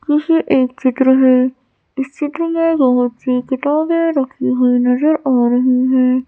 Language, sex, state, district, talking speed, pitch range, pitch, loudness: Hindi, female, Madhya Pradesh, Bhopal, 155 wpm, 255-295 Hz, 260 Hz, -15 LUFS